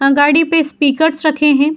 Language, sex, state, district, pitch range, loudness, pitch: Hindi, female, Uttar Pradesh, Jyotiba Phule Nagar, 285-315 Hz, -13 LUFS, 300 Hz